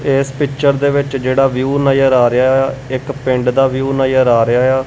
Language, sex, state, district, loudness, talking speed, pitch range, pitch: Punjabi, male, Punjab, Kapurthala, -14 LUFS, 195 wpm, 130-135 Hz, 135 Hz